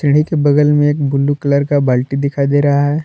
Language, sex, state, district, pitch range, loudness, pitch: Hindi, male, Jharkhand, Palamu, 140-145 Hz, -14 LUFS, 145 Hz